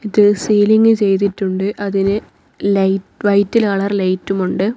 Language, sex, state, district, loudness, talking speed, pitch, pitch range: Malayalam, female, Kerala, Kozhikode, -15 LUFS, 115 wpm, 200 Hz, 195-210 Hz